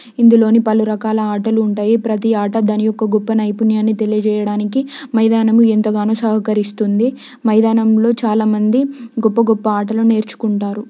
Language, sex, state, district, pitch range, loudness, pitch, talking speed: Telugu, female, Telangana, Nalgonda, 215-225 Hz, -15 LUFS, 220 Hz, 120 wpm